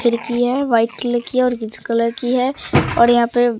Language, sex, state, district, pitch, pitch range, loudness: Hindi, female, Bihar, Katihar, 240 Hz, 230-250 Hz, -17 LUFS